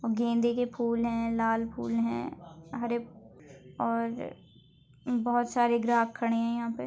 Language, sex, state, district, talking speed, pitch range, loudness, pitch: Hindi, female, Maharashtra, Aurangabad, 130 wpm, 230-235 Hz, -30 LUFS, 235 Hz